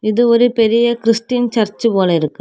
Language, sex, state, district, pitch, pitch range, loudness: Tamil, female, Tamil Nadu, Kanyakumari, 230 Hz, 215-240 Hz, -14 LUFS